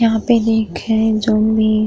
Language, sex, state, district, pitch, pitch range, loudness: Bhojpuri, female, Uttar Pradesh, Gorakhpur, 220 Hz, 215-225 Hz, -15 LUFS